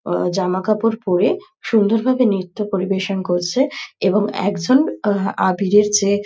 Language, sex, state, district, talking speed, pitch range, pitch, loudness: Bengali, female, West Bengal, Dakshin Dinajpur, 115 wpm, 190-220 Hz, 200 Hz, -18 LUFS